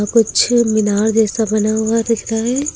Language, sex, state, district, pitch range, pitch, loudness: Hindi, female, Uttar Pradesh, Lucknow, 215-230 Hz, 225 Hz, -15 LUFS